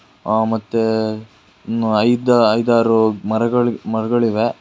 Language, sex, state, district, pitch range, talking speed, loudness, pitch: Kannada, male, Karnataka, Bangalore, 110-115 Hz, 80 wpm, -17 LUFS, 110 Hz